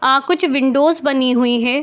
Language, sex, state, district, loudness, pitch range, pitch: Hindi, female, Bihar, Gopalganj, -15 LUFS, 255-290 Hz, 275 Hz